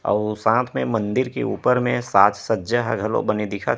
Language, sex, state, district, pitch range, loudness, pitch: Chhattisgarhi, male, Chhattisgarh, Rajnandgaon, 105-125 Hz, -21 LUFS, 110 Hz